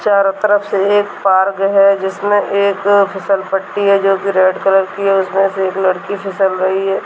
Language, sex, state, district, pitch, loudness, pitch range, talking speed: Hindi, male, Chhattisgarh, Kabirdham, 195 Hz, -14 LUFS, 195-200 Hz, 195 wpm